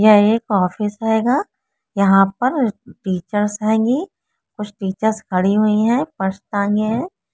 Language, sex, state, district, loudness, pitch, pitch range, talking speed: Hindi, female, West Bengal, Jalpaiguri, -18 LUFS, 210 Hz, 200-225 Hz, 120 wpm